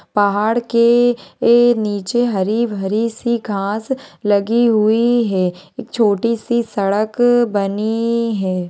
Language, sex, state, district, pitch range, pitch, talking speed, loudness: Hindi, female, Bihar, Jahanabad, 205-235 Hz, 225 Hz, 110 wpm, -16 LUFS